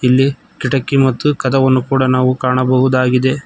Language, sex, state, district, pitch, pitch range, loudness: Kannada, male, Karnataka, Koppal, 130 Hz, 130-135 Hz, -14 LUFS